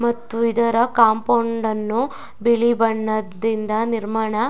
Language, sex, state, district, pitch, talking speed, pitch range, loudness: Kannada, female, Karnataka, Dakshina Kannada, 230 Hz, 95 wpm, 220-235 Hz, -20 LUFS